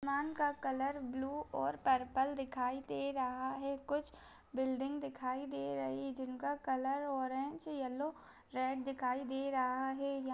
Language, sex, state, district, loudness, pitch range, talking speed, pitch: Hindi, female, Chhattisgarh, Kabirdham, -39 LUFS, 260-280 Hz, 145 wpm, 265 Hz